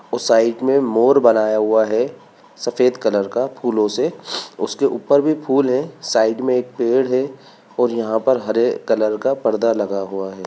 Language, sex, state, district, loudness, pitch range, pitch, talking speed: Bhojpuri, male, Bihar, Saran, -18 LUFS, 110-130 Hz, 120 Hz, 185 wpm